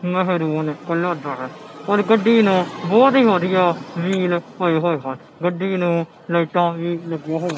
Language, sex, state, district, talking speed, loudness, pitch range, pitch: Punjabi, male, Punjab, Kapurthala, 160 wpm, -19 LUFS, 165-185 Hz, 175 Hz